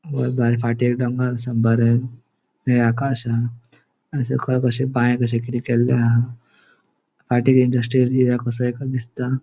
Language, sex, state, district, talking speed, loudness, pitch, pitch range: Konkani, male, Goa, North and South Goa, 140 wpm, -20 LUFS, 125 Hz, 120-125 Hz